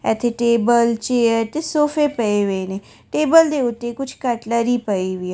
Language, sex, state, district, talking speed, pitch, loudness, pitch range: Punjabi, female, Delhi, New Delhi, 180 wpm, 235 Hz, -19 LUFS, 220-270 Hz